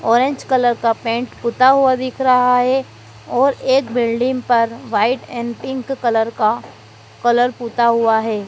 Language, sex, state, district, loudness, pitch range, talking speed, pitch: Hindi, female, Madhya Pradesh, Dhar, -17 LUFS, 230-255 Hz, 155 wpm, 240 Hz